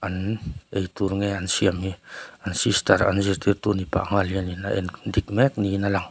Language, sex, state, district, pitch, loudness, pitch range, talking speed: Mizo, male, Mizoram, Aizawl, 100 Hz, -24 LUFS, 95-100 Hz, 205 wpm